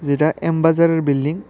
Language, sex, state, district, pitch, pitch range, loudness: Bengali, male, Tripura, West Tripura, 160 Hz, 145-165 Hz, -17 LUFS